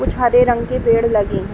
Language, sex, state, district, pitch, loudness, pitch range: Hindi, female, Uttar Pradesh, Etah, 230 Hz, -15 LUFS, 210-245 Hz